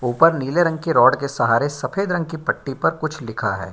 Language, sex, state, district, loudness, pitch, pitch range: Hindi, male, Bihar, Bhagalpur, -20 LUFS, 145 Hz, 120-160 Hz